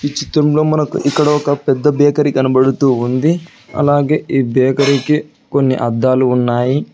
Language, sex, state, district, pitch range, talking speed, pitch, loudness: Telugu, male, Telangana, Hyderabad, 130-150 Hz, 140 wpm, 140 Hz, -14 LUFS